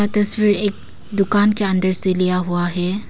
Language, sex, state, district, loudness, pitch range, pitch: Hindi, female, Arunachal Pradesh, Papum Pare, -16 LUFS, 185-205 Hz, 195 Hz